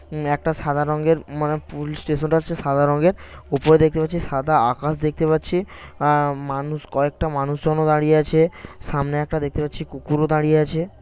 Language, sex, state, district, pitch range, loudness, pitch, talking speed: Bengali, male, West Bengal, Purulia, 145-160 Hz, -21 LUFS, 150 Hz, 175 wpm